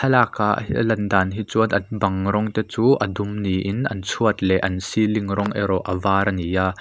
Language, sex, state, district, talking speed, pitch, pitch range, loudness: Mizo, male, Mizoram, Aizawl, 240 wpm, 100 Hz, 95-110 Hz, -21 LUFS